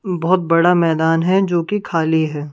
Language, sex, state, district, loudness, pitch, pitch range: Hindi, female, Punjab, Kapurthala, -16 LUFS, 170 Hz, 165-185 Hz